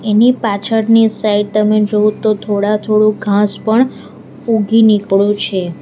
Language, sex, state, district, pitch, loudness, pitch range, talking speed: Gujarati, female, Gujarat, Valsad, 210 Hz, -13 LUFS, 205-220 Hz, 145 wpm